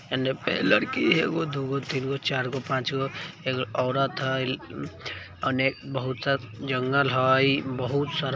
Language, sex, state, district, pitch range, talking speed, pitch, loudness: Maithili, male, Bihar, Vaishali, 130-140 Hz, 170 wpm, 135 Hz, -26 LUFS